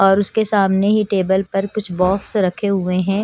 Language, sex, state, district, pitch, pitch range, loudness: Hindi, female, Punjab, Kapurthala, 195 Hz, 190-205 Hz, -17 LUFS